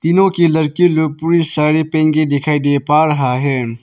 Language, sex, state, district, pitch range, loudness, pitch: Hindi, male, Arunachal Pradesh, Papum Pare, 145-160 Hz, -14 LUFS, 155 Hz